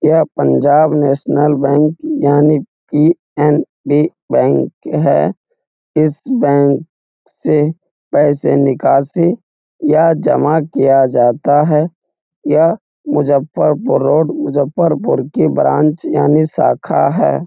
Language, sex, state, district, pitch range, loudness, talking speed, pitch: Hindi, male, Bihar, Muzaffarpur, 145-160 Hz, -13 LUFS, 100 wpm, 150 Hz